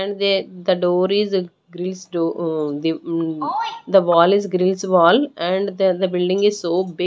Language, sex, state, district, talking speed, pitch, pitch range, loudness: English, female, Haryana, Rohtak, 180 wpm, 185 Hz, 170-195 Hz, -19 LUFS